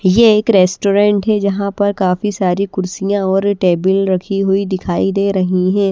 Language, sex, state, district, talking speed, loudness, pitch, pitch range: Hindi, female, Bihar, West Champaran, 170 wpm, -14 LUFS, 195 Hz, 185-200 Hz